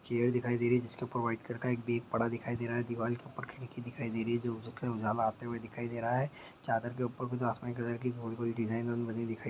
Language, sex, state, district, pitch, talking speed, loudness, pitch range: Hindi, male, Bihar, Sitamarhi, 120 Hz, 315 wpm, -35 LUFS, 115-120 Hz